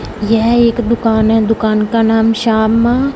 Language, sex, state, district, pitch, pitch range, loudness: Hindi, female, Punjab, Fazilka, 225 Hz, 220-235 Hz, -12 LUFS